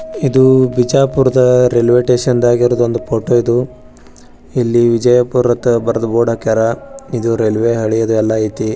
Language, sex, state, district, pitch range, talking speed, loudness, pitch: Kannada, male, Karnataka, Bijapur, 115-125 Hz, 130 wpm, -13 LUFS, 120 Hz